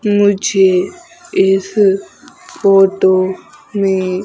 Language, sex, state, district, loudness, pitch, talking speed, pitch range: Hindi, female, Madhya Pradesh, Umaria, -13 LUFS, 195 Hz, 55 wpm, 190-240 Hz